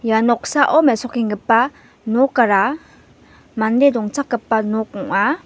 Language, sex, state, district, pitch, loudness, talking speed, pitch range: Garo, female, Meghalaya, West Garo Hills, 235 Hz, -17 LUFS, 90 wpm, 220-275 Hz